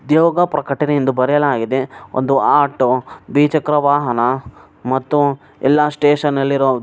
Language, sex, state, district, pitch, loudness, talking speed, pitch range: Kannada, male, Karnataka, Bellary, 140 Hz, -16 LUFS, 115 wpm, 130-145 Hz